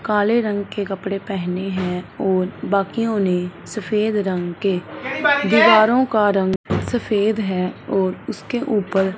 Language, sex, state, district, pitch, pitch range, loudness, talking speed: Hindi, female, Punjab, Fazilka, 200 Hz, 190-215 Hz, -19 LUFS, 130 wpm